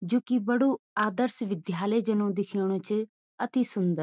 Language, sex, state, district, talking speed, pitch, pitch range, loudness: Garhwali, female, Uttarakhand, Tehri Garhwal, 150 wpm, 215 Hz, 200-245 Hz, -28 LUFS